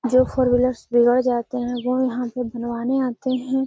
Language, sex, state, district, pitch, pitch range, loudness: Magahi, female, Bihar, Gaya, 250 Hz, 245-255 Hz, -21 LUFS